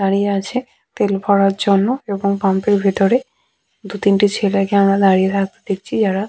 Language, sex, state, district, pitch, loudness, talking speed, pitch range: Bengali, female, West Bengal, Malda, 200 Hz, -16 LUFS, 160 wpm, 195-205 Hz